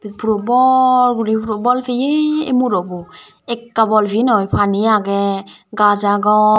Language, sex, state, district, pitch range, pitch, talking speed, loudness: Chakma, female, Tripura, Dhalai, 205-250 Hz, 220 Hz, 145 wpm, -15 LUFS